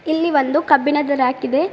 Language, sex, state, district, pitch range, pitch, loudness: Kannada, female, Karnataka, Bidar, 280-310 Hz, 290 Hz, -17 LUFS